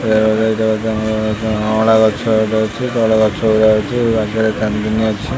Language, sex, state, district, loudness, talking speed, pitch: Odia, male, Odisha, Khordha, -15 LUFS, 120 wpm, 110 Hz